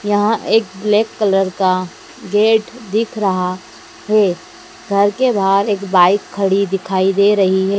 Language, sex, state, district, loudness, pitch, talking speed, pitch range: Hindi, female, Madhya Pradesh, Dhar, -15 LUFS, 200 Hz, 145 wpm, 190-210 Hz